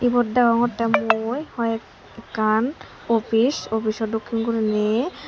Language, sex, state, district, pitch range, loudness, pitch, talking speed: Chakma, female, Tripura, Unakoti, 220-240 Hz, -22 LUFS, 230 Hz, 100 wpm